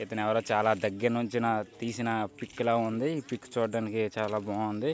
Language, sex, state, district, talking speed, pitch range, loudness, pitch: Telugu, male, Andhra Pradesh, Guntur, 145 wpm, 110-120 Hz, -30 LUFS, 110 Hz